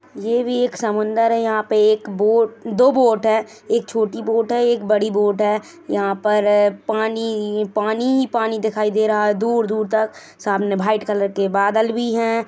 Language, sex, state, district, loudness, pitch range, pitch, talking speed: Hindi, female, Chhattisgarh, Rajnandgaon, -19 LUFS, 210-230 Hz, 220 Hz, 190 wpm